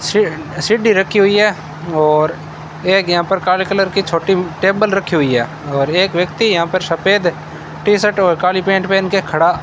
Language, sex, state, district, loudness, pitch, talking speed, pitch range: Hindi, male, Rajasthan, Bikaner, -14 LUFS, 185 Hz, 200 wpm, 165-195 Hz